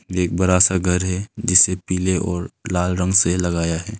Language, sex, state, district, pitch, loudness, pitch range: Hindi, male, Arunachal Pradesh, Longding, 90 Hz, -18 LUFS, 90-95 Hz